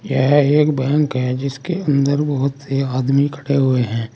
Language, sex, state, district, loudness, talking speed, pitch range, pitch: Hindi, male, Uttar Pradesh, Saharanpur, -17 LUFS, 175 wpm, 130-145 Hz, 140 Hz